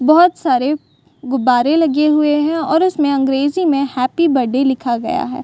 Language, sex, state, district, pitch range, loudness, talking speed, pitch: Hindi, female, Bihar, Saran, 260-315 Hz, -15 LUFS, 165 wpm, 280 Hz